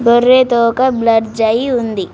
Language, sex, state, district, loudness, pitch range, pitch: Telugu, female, Telangana, Mahabubabad, -12 LUFS, 225-250 Hz, 235 Hz